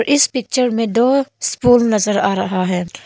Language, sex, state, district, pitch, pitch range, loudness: Hindi, female, Arunachal Pradesh, Longding, 230 Hz, 195-255 Hz, -16 LUFS